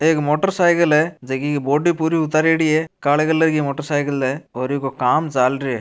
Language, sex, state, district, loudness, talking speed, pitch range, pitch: Marwari, male, Rajasthan, Churu, -18 LUFS, 225 wpm, 140-160 Hz, 150 Hz